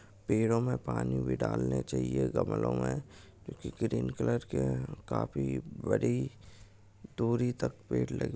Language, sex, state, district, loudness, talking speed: Angika, male, Bihar, Supaul, -33 LUFS, 120 wpm